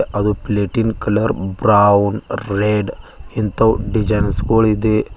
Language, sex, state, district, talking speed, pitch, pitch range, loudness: Kannada, male, Karnataka, Bidar, 115 wpm, 105 Hz, 100-110 Hz, -16 LUFS